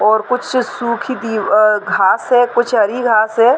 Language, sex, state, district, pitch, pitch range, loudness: Hindi, female, Chhattisgarh, Bilaspur, 235 Hz, 215-245 Hz, -14 LUFS